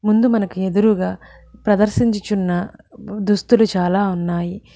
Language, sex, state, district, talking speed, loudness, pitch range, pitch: Telugu, female, Telangana, Hyderabad, 90 wpm, -18 LUFS, 185-215 Hz, 205 Hz